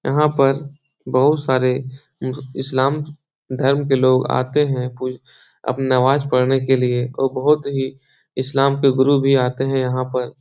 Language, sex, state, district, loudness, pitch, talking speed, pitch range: Hindi, male, Bihar, Jahanabad, -18 LUFS, 135 Hz, 150 wpm, 130-140 Hz